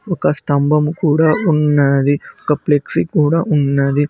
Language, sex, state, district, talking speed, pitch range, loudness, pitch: Telugu, male, Telangana, Mahabubabad, 115 wpm, 140-155 Hz, -15 LUFS, 150 Hz